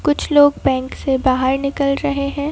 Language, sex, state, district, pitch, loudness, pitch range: Hindi, female, Madhya Pradesh, Bhopal, 280 Hz, -17 LUFS, 265-285 Hz